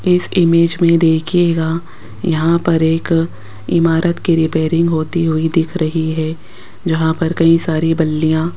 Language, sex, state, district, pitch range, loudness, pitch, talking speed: Hindi, female, Rajasthan, Jaipur, 160-170 Hz, -15 LUFS, 165 Hz, 145 wpm